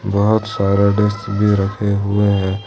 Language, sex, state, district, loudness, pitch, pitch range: Hindi, male, Jharkhand, Ranchi, -16 LUFS, 100 Hz, 100-105 Hz